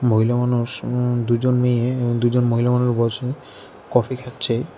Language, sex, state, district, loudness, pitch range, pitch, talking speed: Bengali, male, Tripura, West Tripura, -20 LUFS, 120-125 Hz, 125 Hz, 150 wpm